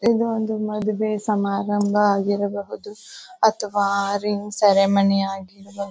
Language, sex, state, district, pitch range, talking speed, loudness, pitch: Kannada, female, Karnataka, Bijapur, 200-215 Hz, 90 wpm, -21 LUFS, 205 Hz